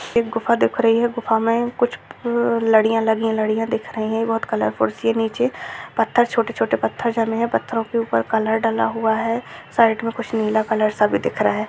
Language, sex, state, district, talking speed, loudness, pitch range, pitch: Hindi, female, Bihar, Purnia, 250 wpm, -20 LUFS, 220-235 Hz, 225 Hz